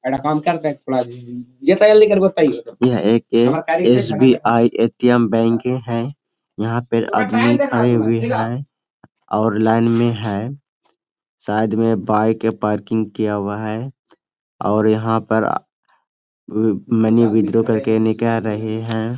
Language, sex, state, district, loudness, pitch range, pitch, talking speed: Hindi, male, Jharkhand, Sahebganj, -17 LUFS, 110-125 Hz, 115 Hz, 105 wpm